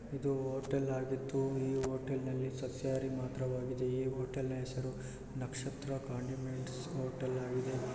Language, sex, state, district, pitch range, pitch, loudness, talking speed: Kannada, male, Karnataka, Dakshina Kannada, 130-135 Hz, 130 Hz, -38 LUFS, 130 wpm